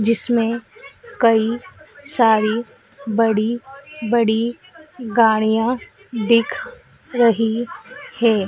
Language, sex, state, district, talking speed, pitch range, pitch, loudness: Hindi, female, Madhya Pradesh, Dhar, 65 wpm, 225-250 Hz, 230 Hz, -19 LUFS